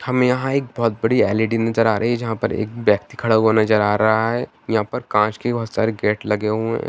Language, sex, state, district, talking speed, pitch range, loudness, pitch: Hindi, male, Bihar, Jamui, 250 wpm, 110-120 Hz, -19 LUFS, 110 Hz